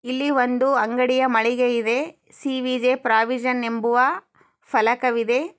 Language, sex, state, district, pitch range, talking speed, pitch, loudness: Kannada, female, Karnataka, Chamarajanagar, 235-260 Hz, 95 wpm, 250 Hz, -21 LUFS